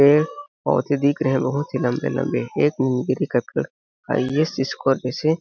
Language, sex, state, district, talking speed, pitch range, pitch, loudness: Hindi, male, Chhattisgarh, Balrampur, 145 wpm, 130-155 Hz, 140 Hz, -22 LUFS